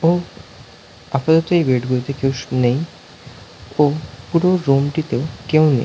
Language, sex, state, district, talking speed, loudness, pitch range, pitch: Bengali, male, West Bengal, North 24 Parganas, 145 wpm, -18 LUFS, 125-160 Hz, 140 Hz